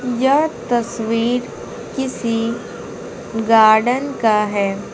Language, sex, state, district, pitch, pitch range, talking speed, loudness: Hindi, female, Bihar, Patna, 235 Hz, 220-250 Hz, 75 wpm, -17 LUFS